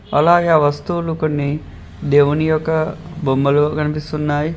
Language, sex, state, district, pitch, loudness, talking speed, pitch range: Telugu, male, Telangana, Mahabubabad, 150 Hz, -17 LUFS, 120 wpm, 145-160 Hz